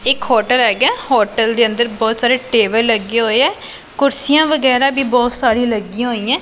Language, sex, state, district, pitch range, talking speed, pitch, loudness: Punjabi, female, Punjab, Pathankot, 225-265 Hz, 175 wpm, 240 Hz, -14 LUFS